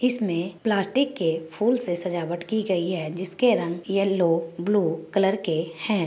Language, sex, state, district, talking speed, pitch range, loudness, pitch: Magahi, female, Bihar, Gaya, 170 wpm, 170-205 Hz, -24 LUFS, 185 Hz